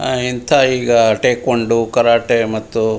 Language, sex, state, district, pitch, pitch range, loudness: Kannada, male, Karnataka, Mysore, 115 Hz, 115-125 Hz, -14 LUFS